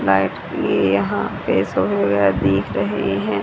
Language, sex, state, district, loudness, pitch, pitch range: Hindi, female, Haryana, Rohtak, -19 LUFS, 100 Hz, 95-100 Hz